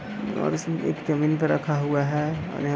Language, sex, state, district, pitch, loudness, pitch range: Hindi, male, Bihar, East Champaran, 150 Hz, -25 LUFS, 145-155 Hz